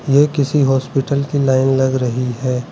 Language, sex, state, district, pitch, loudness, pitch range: Hindi, male, Arunachal Pradesh, Lower Dibang Valley, 135 Hz, -16 LUFS, 130-140 Hz